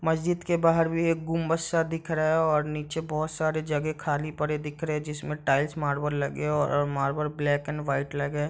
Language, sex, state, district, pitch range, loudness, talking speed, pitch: Hindi, male, Bihar, East Champaran, 145-160 Hz, -27 LUFS, 235 wpm, 150 Hz